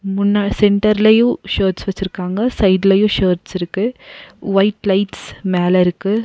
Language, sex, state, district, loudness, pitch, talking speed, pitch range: Tamil, female, Tamil Nadu, Nilgiris, -16 LUFS, 195 Hz, 105 wpm, 190-210 Hz